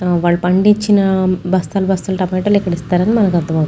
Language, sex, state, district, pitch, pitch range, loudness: Telugu, female, Andhra Pradesh, Chittoor, 185 Hz, 175-195 Hz, -14 LUFS